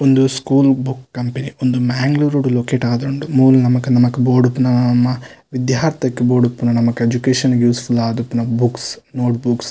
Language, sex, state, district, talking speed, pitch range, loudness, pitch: Tulu, male, Karnataka, Dakshina Kannada, 140 wpm, 120-130 Hz, -16 LUFS, 125 Hz